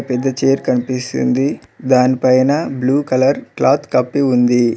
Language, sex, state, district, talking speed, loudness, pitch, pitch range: Telugu, male, Telangana, Mahabubabad, 115 wpm, -15 LUFS, 130 Hz, 125-135 Hz